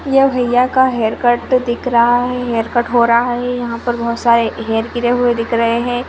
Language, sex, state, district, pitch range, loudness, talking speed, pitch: Hindi, female, Goa, North and South Goa, 235-245 Hz, -15 LUFS, 215 wpm, 240 Hz